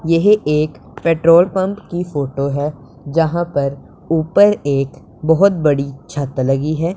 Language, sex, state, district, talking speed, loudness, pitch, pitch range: Hindi, male, Punjab, Pathankot, 140 wpm, -16 LUFS, 155 Hz, 140-175 Hz